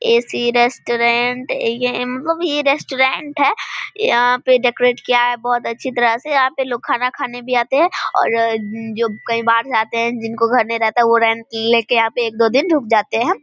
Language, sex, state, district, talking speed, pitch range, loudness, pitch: Hindi, female, Bihar, Vaishali, 190 wpm, 230-265 Hz, -17 LUFS, 240 Hz